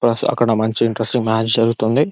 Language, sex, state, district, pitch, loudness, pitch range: Telugu, male, Telangana, Nalgonda, 115 Hz, -17 LUFS, 110-120 Hz